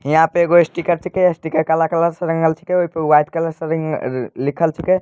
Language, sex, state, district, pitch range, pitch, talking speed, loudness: Maithili, male, Bihar, Samastipur, 160-170 Hz, 165 Hz, 225 wpm, -17 LUFS